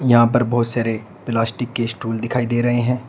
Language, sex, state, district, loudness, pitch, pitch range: Hindi, male, Uttar Pradesh, Shamli, -20 LUFS, 120 Hz, 115-120 Hz